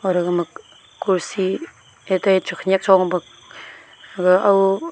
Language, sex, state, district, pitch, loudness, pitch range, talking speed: Wancho, female, Arunachal Pradesh, Longding, 190 Hz, -19 LUFS, 180-195 Hz, 75 wpm